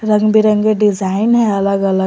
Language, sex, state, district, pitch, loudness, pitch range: Hindi, female, Jharkhand, Garhwa, 210 Hz, -13 LUFS, 195-215 Hz